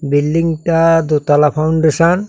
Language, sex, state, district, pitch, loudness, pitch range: Bengali, male, Tripura, South Tripura, 160 Hz, -13 LUFS, 150-165 Hz